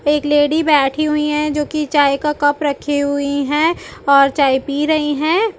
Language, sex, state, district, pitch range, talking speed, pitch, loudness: Hindi, female, Chhattisgarh, Bilaspur, 285-300 Hz, 195 wpm, 295 Hz, -16 LUFS